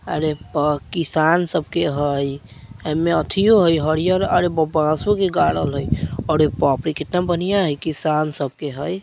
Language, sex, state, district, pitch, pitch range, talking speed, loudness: Bajjika, male, Bihar, Vaishali, 155 Hz, 145-175 Hz, 160 wpm, -19 LUFS